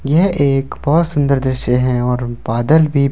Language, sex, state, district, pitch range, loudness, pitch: Hindi, male, Delhi, New Delhi, 125-150 Hz, -15 LUFS, 140 Hz